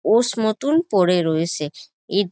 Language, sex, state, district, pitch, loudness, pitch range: Bengali, female, West Bengal, North 24 Parganas, 200 Hz, -20 LUFS, 170-225 Hz